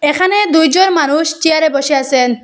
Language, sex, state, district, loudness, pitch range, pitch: Bengali, female, Assam, Hailakandi, -11 LUFS, 280-325 Hz, 315 Hz